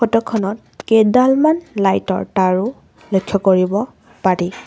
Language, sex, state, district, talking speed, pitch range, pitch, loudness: Assamese, female, Assam, Sonitpur, 115 wpm, 190-235 Hz, 205 Hz, -16 LUFS